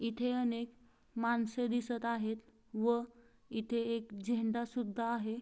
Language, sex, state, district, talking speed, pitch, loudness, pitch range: Marathi, female, Maharashtra, Sindhudurg, 120 wpm, 235 Hz, -37 LUFS, 230-235 Hz